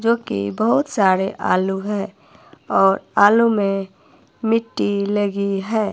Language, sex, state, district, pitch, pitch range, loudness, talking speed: Hindi, female, Himachal Pradesh, Shimla, 200 Hz, 195-220 Hz, -19 LUFS, 110 wpm